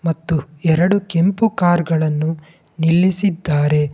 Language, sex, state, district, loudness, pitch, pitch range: Kannada, male, Karnataka, Bangalore, -17 LUFS, 165 Hz, 155-180 Hz